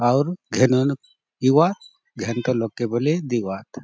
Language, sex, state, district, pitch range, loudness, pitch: Halbi, male, Chhattisgarh, Bastar, 120-150 Hz, -22 LUFS, 130 Hz